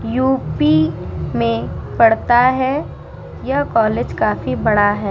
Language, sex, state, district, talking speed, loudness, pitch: Hindi, female, Uttar Pradesh, Muzaffarnagar, 105 wpm, -17 LUFS, 160 Hz